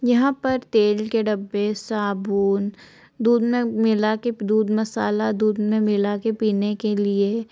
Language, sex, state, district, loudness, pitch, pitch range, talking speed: Hindi, female, Chhattisgarh, Balrampur, -21 LUFS, 215 Hz, 205-225 Hz, 160 wpm